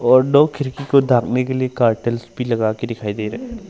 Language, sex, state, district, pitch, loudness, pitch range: Hindi, male, Arunachal Pradesh, Longding, 125 Hz, -18 LUFS, 115-140 Hz